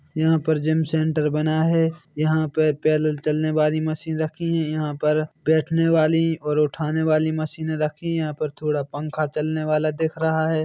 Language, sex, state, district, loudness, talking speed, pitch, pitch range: Hindi, male, Chhattisgarh, Bilaspur, -22 LUFS, 175 wpm, 155 Hz, 155-160 Hz